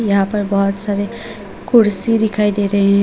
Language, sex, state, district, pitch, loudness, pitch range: Hindi, female, Tripura, Unakoti, 205 Hz, -15 LUFS, 200-220 Hz